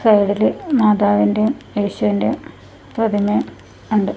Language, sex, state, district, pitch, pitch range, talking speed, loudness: Malayalam, female, Kerala, Kasaragod, 205 Hz, 200-215 Hz, 70 wpm, -17 LUFS